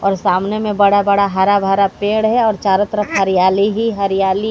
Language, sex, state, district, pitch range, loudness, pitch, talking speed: Hindi, female, Odisha, Sambalpur, 195-210 Hz, -15 LUFS, 200 Hz, 200 wpm